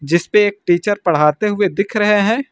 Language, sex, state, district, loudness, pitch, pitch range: Hindi, male, Uttar Pradesh, Lucknow, -15 LUFS, 205 Hz, 175-210 Hz